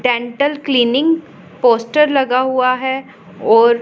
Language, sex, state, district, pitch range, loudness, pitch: Hindi, female, Punjab, Pathankot, 240-275 Hz, -15 LUFS, 255 Hz